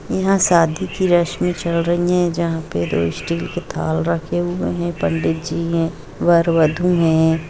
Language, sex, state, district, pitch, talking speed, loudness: Hindi, female, Jharkhand, Jamtara, 165 Hz, 175 wpm, -18 LUFS